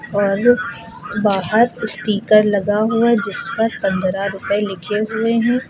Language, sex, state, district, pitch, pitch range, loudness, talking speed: Hindi, female, Uttar Pradesh, Lucknow, 210 Hz, 200-230 Hz, -17 LUFS, 135 wpm